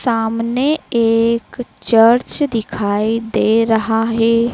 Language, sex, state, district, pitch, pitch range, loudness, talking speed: Hindi, female, Madhya Pradesh, Dhar, 230 Hz, 225-235 Hz, -16 LUFS, 90 wpm